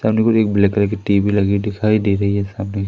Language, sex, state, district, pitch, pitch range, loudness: Hindi, male, Madhya Pradesh, Umaria, 100 Hz, 100-105 Hz, -17 LUFS